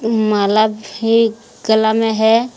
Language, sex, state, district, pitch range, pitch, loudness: Hindi, female, Jharkhand, Deoghar, 215-225 Hz, 220 Hz, -15 LUFS